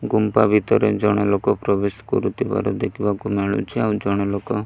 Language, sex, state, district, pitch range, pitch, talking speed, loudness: Odia, male, Odisha, Malkangiri, 100-105 Hz, 105 Hz, 155 wpm, -20 LUFS